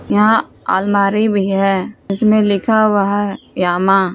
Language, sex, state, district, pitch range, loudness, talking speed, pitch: Hindi, female, Jharkhand, Palamu, 195-210 Hz, -15 LUFS, 130 wpm, 200 Hz